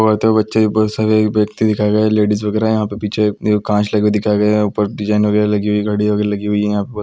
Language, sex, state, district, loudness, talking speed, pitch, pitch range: Hindi, male, Bihar, Araria, -15 LUFS, 315 wpm, 105 Hz, 105-110 Hz